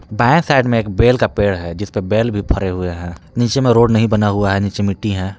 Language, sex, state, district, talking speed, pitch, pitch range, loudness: Hindi, male, Jharkhand, Palamu, 275 wpm, 105 Hz, 100-115 Hz, -16 LUFS